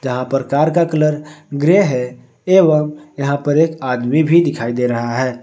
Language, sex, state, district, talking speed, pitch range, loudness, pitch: Hindi, male, Jharkhand, Ranchi, 190 wpm, 125-155 Hz, -15 LUFS, 145 Hz